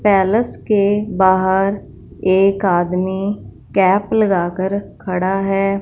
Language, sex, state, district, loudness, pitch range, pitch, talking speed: Hindi, female, Punjab, Fazilka, -17 LUFS, 190-200 Hz, 195 Hz, 105 wpm